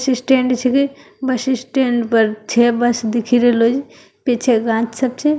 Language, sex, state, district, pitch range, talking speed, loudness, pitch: Angika, female, Bihar, Begusarai, 235-260 Hz, 155 wpm, -16 LUFS, 245 Hz